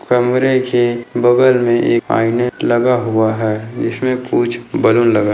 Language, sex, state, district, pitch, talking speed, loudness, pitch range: Hindi, male, Bihar, Bhagalpur, 120 Hz, 145 wpm, -15 LUFS, 115-125 Hz